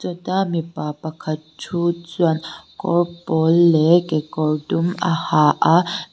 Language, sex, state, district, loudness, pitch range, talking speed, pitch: Mizo, female, Mizoram, Aizawl, -19 LUFS, 155-175 Hz, 125 wpm, 170 Hz